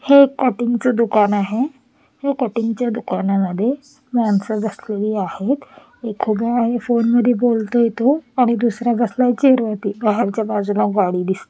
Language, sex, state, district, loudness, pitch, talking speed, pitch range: Marathi, female, Maharashtra, Washim, -18 LUFS, 235 Hz, 125 wpm, 210-250 Hz